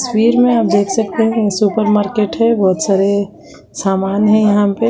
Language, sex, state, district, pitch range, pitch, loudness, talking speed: Kumaoni, female, Uttarakhand, Uttarkashi, 200-225 Hz, 210 Hz, -14 LUFS, 195 wpm